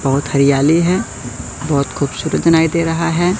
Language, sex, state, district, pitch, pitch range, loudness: Hindi, male, Madhya Pradesh, Katni, 165 Hz, 140-170 Hz, -15 LUFS